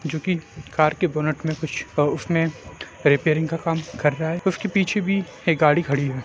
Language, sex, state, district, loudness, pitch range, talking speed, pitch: Hindi, male, Jharkhand, Jamtara, -22 LUFS, 155-170 Hz, 190 wpm, 160 Hz